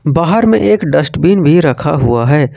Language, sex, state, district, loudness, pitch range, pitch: Hindi, male, Jharkhand, Ranchi, -11 LUFS, 145-175 Hz, 155 Hz